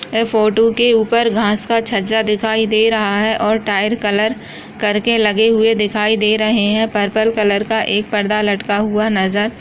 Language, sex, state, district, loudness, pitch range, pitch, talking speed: Hindi, female, Goa, North and South Goa, -15 LUFS, 210-225 Hz, 215 Hz, 185 wpm